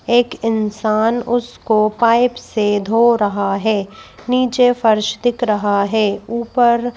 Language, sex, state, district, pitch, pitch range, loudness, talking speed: Hindi, female, Madhya Pradesh, Bhopal, 225 Hz, 210-240 Hz, -16 LUFS, 130 wpm